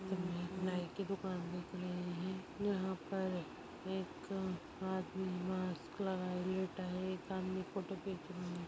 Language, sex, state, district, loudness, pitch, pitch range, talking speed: Hindi, female, Maharashtra, Sindhudurg, -42 LUFS, 185 Hz, 180-190 Hz, 140 wpm